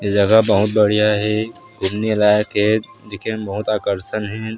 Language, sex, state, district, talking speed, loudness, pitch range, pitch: Chhattisgarhi, male, Chhattisgarh, Sarguja, 170 wpm, -18 LUFS, 105-110 Hz, 105 Hz